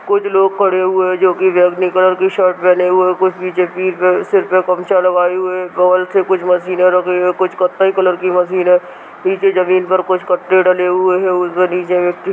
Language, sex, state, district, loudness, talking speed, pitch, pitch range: Hindi, male, Bihar, Purnia, -13 LUFS, 230 wpm, 185 Hz, 180-185 Hz